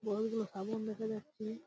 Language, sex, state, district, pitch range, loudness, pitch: Bengali, male, West Bengal, Purulia, 210-220 Hz, -39 LUFS, 220 Hz